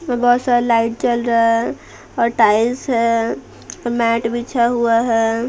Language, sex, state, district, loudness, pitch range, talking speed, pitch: Hindi, female, Bihar, Patna, -17 LUFS, 230-240 Hz, 155 wpm, 235 Hz